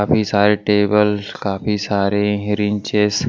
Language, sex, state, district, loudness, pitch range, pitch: Hindi, male, Maharashtra, Washim, -17 LUFS, 100-105 Hz, 105 Hz